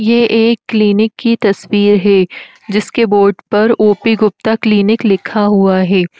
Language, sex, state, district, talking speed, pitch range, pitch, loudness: Hindi, female, Uttar Pradesh, Etah, 145 wpm, 200-225 Hz, 210 Hz, -12 LUFS